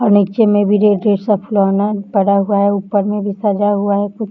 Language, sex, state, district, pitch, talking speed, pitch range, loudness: Hindi, female, Maharashtra, Nagpur, 205 Hz, 235 wpm, 200-210 Hz, -14 LUFS